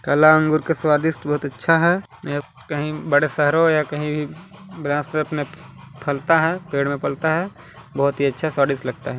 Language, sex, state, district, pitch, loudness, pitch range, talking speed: Hindi, male, Chhattisgarh, Balrampur, 150 Hz, -20 LUFS, 140-160 Hz, 190 wpm